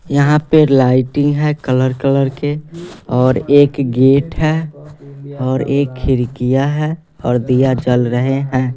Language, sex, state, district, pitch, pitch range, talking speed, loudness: Hindi, male, Bihar, West Champaran, 135 Hz, 130-145 Hz, 135 wpm, -14 LUFS